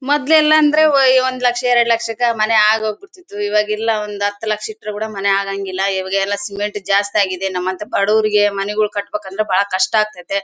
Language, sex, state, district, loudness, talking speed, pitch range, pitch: Kannada, female, Karnataka, Bellary, -16 LUFS, 165 wpm, 200-230 Hz, 210 Hz